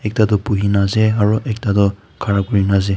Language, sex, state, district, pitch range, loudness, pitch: Nagamese, male, Nagaland, Kohima, 100-105 Hz, -17 LUFS, 100 Hz